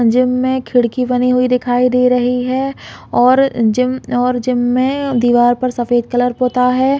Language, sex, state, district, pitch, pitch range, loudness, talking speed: Hindi, female, Chhattisgarh, Balrampur, 250 Hz, 245-255 Hz, -14 LUFS, 170 wpm